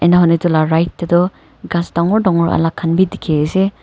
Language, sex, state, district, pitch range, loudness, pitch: Nagamese, female, Nagaland, Kohima, 165-185 Hz, -15 LUFS, 170 Hz